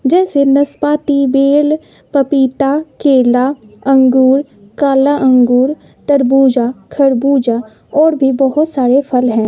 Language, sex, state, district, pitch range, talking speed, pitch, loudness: Hindi, female, Bihar, West Champaran, 255-285 Hz, 100 wpm, 275 Hz, -12 LUFS